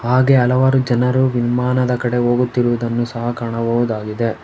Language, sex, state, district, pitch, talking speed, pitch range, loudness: Kannada, male, Karnataka, Bangalore, 120 Hz, 110 wpm, 120-125 Hz, -17 LUFS